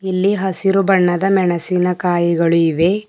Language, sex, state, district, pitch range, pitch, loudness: Kannada, female, Karnataka, Bidar, 170-195 Hz, 180 Hz, -16 LUFS